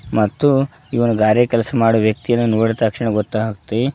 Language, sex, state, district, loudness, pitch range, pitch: Kannada, male, Karnataka, Koppal, -17 LUFS, 110-120 Hz, 115 Hz